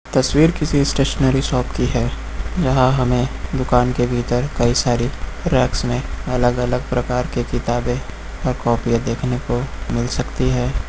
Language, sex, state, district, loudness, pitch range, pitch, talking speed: Hindi, male, Uttar Pradesh, Lucknow, -19 LUFS, 120-130 Hz, 125 Hz, 150 wpm